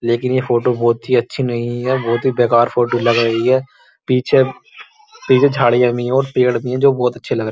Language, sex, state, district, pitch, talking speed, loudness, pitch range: Hindi, male, Uttar Pradesh, Muzaffarnagar, 125 Hz, 230 wpm, -16 LUFS, 120-130 Hz